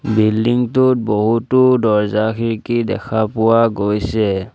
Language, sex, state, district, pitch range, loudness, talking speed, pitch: Assamese, male, Assam, Sonitpur, 105-120 Hz, -16 LUFS, 105 wpm, 110 Hz